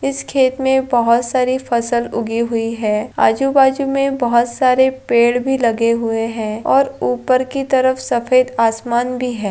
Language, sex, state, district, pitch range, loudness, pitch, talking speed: Hindi, female, Bihar, Purnia, 230-260 Hz, -16 LUFS, 245 Hz, 175 wpm